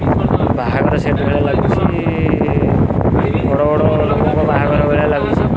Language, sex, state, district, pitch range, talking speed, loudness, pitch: Odia, male, Odisha, Khordha, 110-145 Hz, 110 wpm, -14 LUFS, 125 Hz